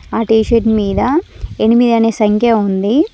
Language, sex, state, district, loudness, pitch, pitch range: Telugu, female, Telangana, Mahabubabad, -13 LUFS, 225 Hz, 215-235 Hz